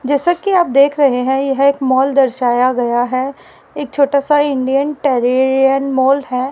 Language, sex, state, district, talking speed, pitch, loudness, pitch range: Hindi, female, Haryana, Rohtak, 175 wpm, 270 Hz, -14 LUFS, 260-280 Hz